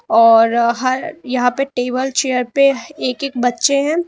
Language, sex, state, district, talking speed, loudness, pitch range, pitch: Hindi, female, Uttar Pradesh, Lalitpur, 160 wpm, -16 LUFS, 245-275 Hz, 255 Hz